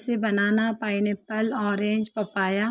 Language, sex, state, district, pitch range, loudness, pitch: Hindi, female, Uttar Pradesh, Gorakhpur, 205-220 Hz, -25 LUFS, 215 Hz